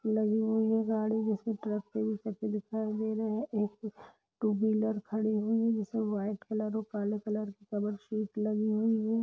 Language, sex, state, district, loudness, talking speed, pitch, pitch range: Hindi, female, Uttar Pradesh, Budaun, -32 LUFS, 195 wpm, 215 Hz, 210-220 Hz